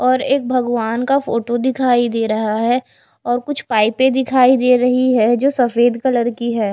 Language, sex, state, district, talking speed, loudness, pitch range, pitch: Hindi, female, Bihar, West Champaran, 185 wpm, -16 LUFS, 235-260 Hz, 245 Hz